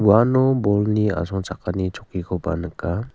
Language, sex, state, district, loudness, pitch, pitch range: Garo, male, Meghalaya, South Garo Hills, -21 LUFS, 95 Hz, 90-105 Hz